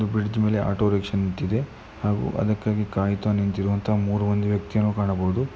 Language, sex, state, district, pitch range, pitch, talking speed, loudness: Kannada, male, Karnataka, Mysore, 100-105 Hz, 105 Hz, 120 wpm, -24 LUFS